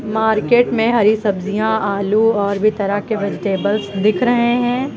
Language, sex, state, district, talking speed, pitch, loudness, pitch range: Hindi, female, Uttar Pradesh, Lucknow, 155 wpm, 215 Hz, -16 LUFS, 200-230 Hz